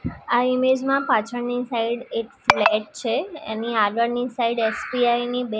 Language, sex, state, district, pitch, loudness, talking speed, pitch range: Gujarati, female, Gujarat, Gandhinagar, 240 Hz, -22 LUFS, 150 wpm, 230-250 Hz